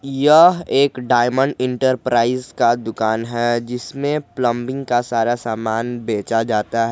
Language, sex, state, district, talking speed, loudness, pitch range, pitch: Hindi, male, Jharkhand, Garhwa, 130 wpm, -18 LUFS, 115-130 Hz, 120 Hz